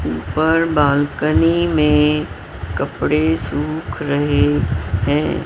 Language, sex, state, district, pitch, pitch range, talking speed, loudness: Hindi, male, Maharashtra, Mumbai Suburban, 145 Hz, 100-155 Hz, 75 wpm, -17 LUFS